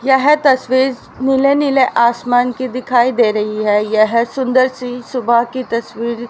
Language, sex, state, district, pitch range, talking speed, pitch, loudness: Hindi, female, Haryana, Rohtak, 235-260 Hz, 150 wpm, 250 Hz, -15 LUFS